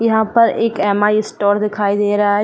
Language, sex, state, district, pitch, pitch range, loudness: Hindi, female, Uttar Pradesh, Jyotiba Phule Nagar, 210 Hz, 205-220 Hz, -15 LUFS